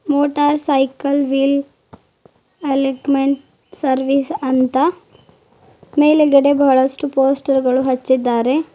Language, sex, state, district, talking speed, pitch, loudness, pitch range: Kannada, female, Karnataka, Bidar, 75 wpm, 275 Hz, -16 LUFS, 265-290 Hz